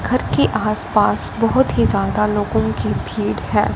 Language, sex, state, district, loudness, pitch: Hindi, female, Punjab, Fazilka, -18 LUFS, 205 Hz